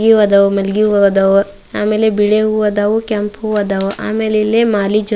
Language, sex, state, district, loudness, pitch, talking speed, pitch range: Kannada, female, Karnataka, Dharwad, -14 LUFS, 210 Hz, 165 wpm, 200-215 Hz